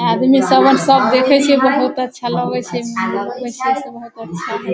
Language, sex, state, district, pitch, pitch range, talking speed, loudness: Hindi, female, Bihar, Sitamarhi, 260 Hz, 235-265 Hz, 150 wpm, -15 LUFS